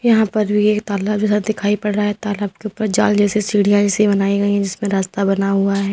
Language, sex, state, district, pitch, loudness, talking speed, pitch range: Hindi, female, Uttar Pradesh, Lalitpur, 205 Hz, -17 LUFS, 245 wpm, 200-210 Hz